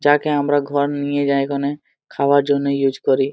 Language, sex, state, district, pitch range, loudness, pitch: Bengali, male, Jharkhand, Jamtara, 140-145 Hz, -18 LUFS, 140 Hz